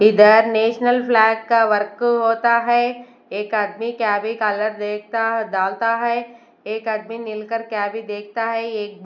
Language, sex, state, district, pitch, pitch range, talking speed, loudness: Hindi, female, Bihar, West Champaran, 225 Hz, 210-235 Hz, 150 wpm, -19 LUFS